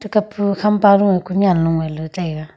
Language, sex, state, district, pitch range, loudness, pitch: Wancho, female, Arunachal Pradesh, Longding, 165-205 Hz, -16 LUFS, 190 Hz